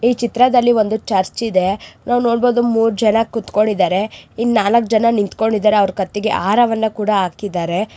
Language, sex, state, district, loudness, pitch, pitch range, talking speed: Kannada, female, Karnataka, Raichur, -16 LUFS, 220 Hz, 205-235 Hz, 145 wpm